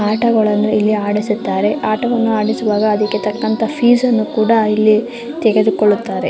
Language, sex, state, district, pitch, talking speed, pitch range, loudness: Kannada, female, Karnataka, Mysore, 215 Hz, 105 wpm, 210-230 Hz, -15 LUFS